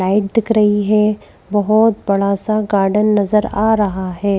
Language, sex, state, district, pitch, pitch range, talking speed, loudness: Hindi, female, Madhya Pradesh, Bhopal, 210 Hz, 200-215 Hz, 165 wpm, -15 LUFS